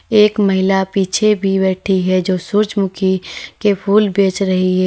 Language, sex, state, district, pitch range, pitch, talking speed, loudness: Hindi, female, Uttar Pradesh, Lalitpur, 185-205 Hz, 195 Hz, 160 wpm, -15 LUFS